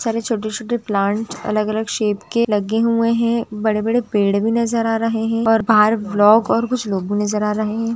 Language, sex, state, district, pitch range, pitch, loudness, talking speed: Hindi, female, Maharashtra, Nagpur, 210-230 Hz, 220 Hz, -18 LUFS, 225 wpm